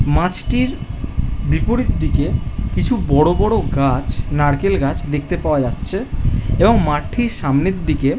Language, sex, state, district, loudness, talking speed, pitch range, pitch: Bengali, male, West Bengal, Jhargram, -18 LUFS, 115 wpm, 135-160 Hz, 145 Hz